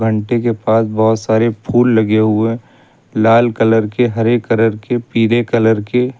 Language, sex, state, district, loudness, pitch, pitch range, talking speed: Hindi, male, Uttar Pradesh, Lucknow, -14 LUFS, 115 Hz, 110-120 Hz, 175 wpm